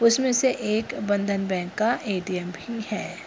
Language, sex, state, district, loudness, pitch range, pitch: Hindi, female, Bihar, Purnia, -25 LUFS, 190-230 Hz, 210 Hz